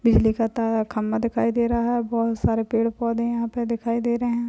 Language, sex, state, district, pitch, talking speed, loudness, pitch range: Hindi, female, Uttar Pradesh, Budaun, 230 Hz, 255 wpm, -23 LUFS, 225-235 Hz